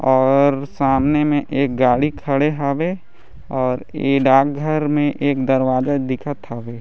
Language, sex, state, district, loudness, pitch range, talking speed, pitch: Chhattisgarhi, male, Chhattisgarh, Raigarh, -18 LUFS, 130-145 Hz, 140 wpm, 140 Hz